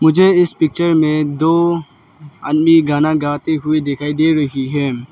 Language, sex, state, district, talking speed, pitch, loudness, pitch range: Hindi, male, Arunachal Pradesh, Lower Dibang Valley, 150 wpm, 155 Hz, -15 LUFS, 145-160 Hz